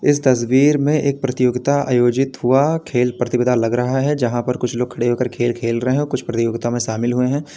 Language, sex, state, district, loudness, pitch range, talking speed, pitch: Hindi, male, Uttar Pradesh, Lalitpur, -18 LUFS, 120-140 Hz, 215 wpm, 125 Hz